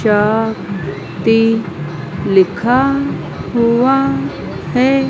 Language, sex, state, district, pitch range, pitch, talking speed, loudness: Hindi, female, Madhya Pradesh, Dhar, 180-245 Hz, 220 Hz, 60 wpm, -15 LUFS